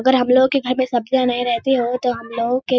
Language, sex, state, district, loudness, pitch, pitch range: Hindi, female, Bihar, Kishanganj, -18 LUFS, 250 Hz, 240-260 Hz